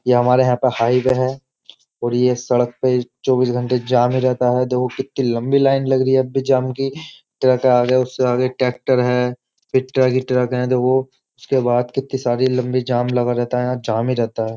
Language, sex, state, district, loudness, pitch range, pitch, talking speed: Hindi, male, Uttar Pradesh, Jyotiba Phule Nagar, -18 LUFS, 125-130 Hz, 125 Hz, 220 wpm